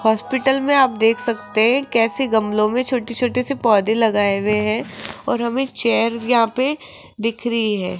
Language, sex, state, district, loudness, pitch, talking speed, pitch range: Hindi, female, Rajasthan, Jaipur, -18 LUFS, 230 Hz, 180 wpm, 220-255 Hz